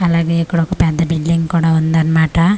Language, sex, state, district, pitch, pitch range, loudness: Telugu, female, Andhra Pradesh, Manyam, 165 Hz, 160-170 Hz, -15 LUFS